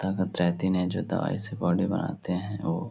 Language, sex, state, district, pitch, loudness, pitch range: Hindi, male, Uttar Pradesh, Etah, 90 Hz, -28 LUFS, 85-95 Hz